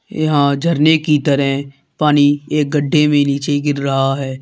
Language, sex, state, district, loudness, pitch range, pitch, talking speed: Hindi, male, Uttar Pradesh, Lalitpur, -15 LUFS, 140-150 Hz, 145 Hz, 165 wpm